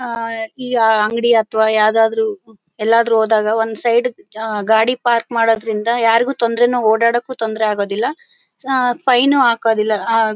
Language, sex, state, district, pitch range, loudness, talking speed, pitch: Kannada, female, Karnataka, Bellary, 220-240 Hz, -15 LUFS, 125 wpm, 225 Hz